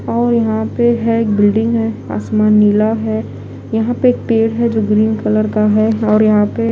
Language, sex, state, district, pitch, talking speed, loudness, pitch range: Hindi, female, Bihar, Katihar, 220 Hz, 195 wpm, -14 LUFS, 215-230 Hz